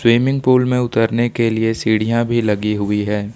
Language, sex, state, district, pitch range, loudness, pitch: Hindi, male, Jharkhand, Ranchi, 105-120 Hz, -17 LUFS, 115 Hz